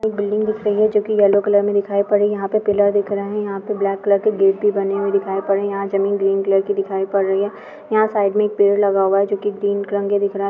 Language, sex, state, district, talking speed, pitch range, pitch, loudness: Hindi, female, Bihar, Araria, 320 wpm, 200-205 Hz, 200 Hz, -18 LUFS